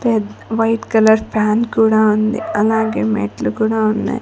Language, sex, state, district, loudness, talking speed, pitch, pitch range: Telugu, female, Andhra Pradesh, Sri Satya Sai, -16 LUFS, 140 wpm, 220 Hz, 215-225 Hz